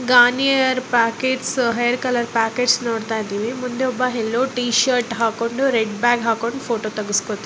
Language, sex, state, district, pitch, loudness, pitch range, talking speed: Kannada, female, Karnataka, Bellary, 240 Hz, -19 LUFS, 230-255 Hz, 130 wpm